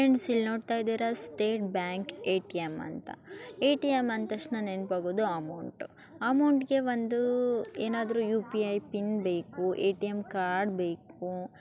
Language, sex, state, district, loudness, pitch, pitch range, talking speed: Kannada, female, Karnataka, Gulbarga, -31 LUFS, 215 Hz, 185-235 Hz, 110 wpm